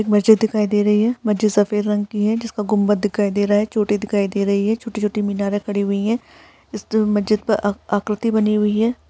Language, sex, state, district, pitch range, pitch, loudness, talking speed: Hindi, female, Bihar, Darbhanga, 205-215 Hz, 210 Hz, -19 LUFS, 225 wpm